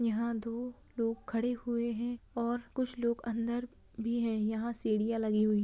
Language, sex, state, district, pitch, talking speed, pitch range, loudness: Hindi, female, Bihar, Kishanganj, 235 Hz, 180 wpm, 225-240 Hz, -34 LUFS